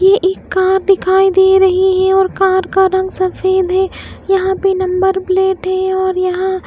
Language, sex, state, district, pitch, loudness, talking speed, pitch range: Hindi, female, Himachal Pradesh, Shimla, 380 Hz, -13 LUFS, 180 wpm, 375-380 Hz